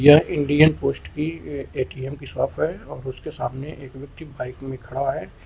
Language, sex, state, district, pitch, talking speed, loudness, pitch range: Hindi, male, Uttar Pradesh, Lucknow, 135 Hz, 175 wpm, -24 LUFS, 130-145 Hz